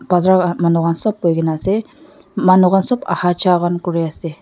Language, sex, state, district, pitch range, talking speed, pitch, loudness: Nagamese, female, Nagaland, Dimapur, 170-195 Hz, 205 wpm, 180 Hz, -16 LUFS